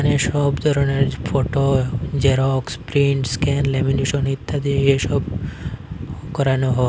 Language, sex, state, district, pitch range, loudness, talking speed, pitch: Bengali, male, Assam, Hailakandi, 135-140 Hz, -19 LUFS, 105 wpm, 135 Hz